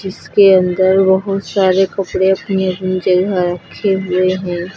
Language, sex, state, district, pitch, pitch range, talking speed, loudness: Hindi, female, Uttar Pradesh, Lucknow, 190 Hz, 185-195 Hz, 140 wpm, -14 LUFS